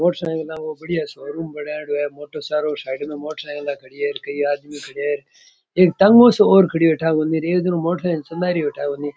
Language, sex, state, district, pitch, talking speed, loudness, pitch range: Rajasthani, male, Rajasthan, Churu, 155 Hz, 170 wpm, -19 LUFS, 145-175 Hz